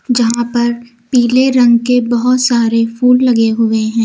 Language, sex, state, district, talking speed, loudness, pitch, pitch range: Hindi, female, Uttar Pradesh, Lucknow, 165 wpm, -12 LUFS, 240 Hz, 230-250 Hz